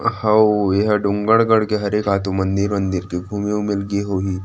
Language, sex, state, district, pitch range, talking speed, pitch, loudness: Chhattisgarhi, male, Chhattisgarh, Rajnandgaon, 95-105 Hz, 150 wpm, 100 Hz, -18 LUFS